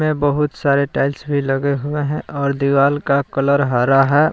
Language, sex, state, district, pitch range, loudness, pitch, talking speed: Hindi, male, Jharkhand, Palamu, 140-145 Hz, -17 LUFS, 140 Hz, 180 wpm